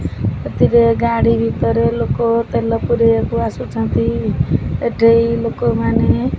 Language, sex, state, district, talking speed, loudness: Odia, male, Odisha, Khordha, 105 wpm, -16 LUFS